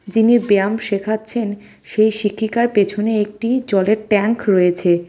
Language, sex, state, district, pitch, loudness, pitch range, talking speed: Bengali, female, West Bengal, Cooch Behar, 215 Hz, -17 LUFS, 200-225 Hz, 130 wpm